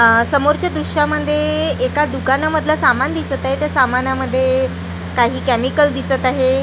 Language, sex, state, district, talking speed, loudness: Marathi, female, Maharashtra, Gondia, 135 wpm, -16 LUFS